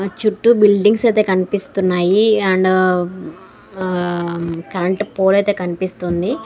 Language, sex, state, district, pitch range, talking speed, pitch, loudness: Telugu, female, Andhra Pradesh, Srikakulam, 180-205 Hz, 95 wpm, 190 Hz, -16 LUFS